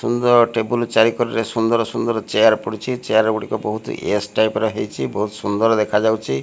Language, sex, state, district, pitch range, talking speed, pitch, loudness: Odia, male, Odisha, Malkangiri, 110-115 Hz, 130 wpm, 110 Hz, -19 LUFS